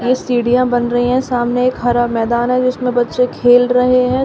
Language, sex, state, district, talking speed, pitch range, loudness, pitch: Hindi, female, Uttar Pradesh, Shamli, 195 wpm, 240-250 Hz, -14 LUFS, 245 Hz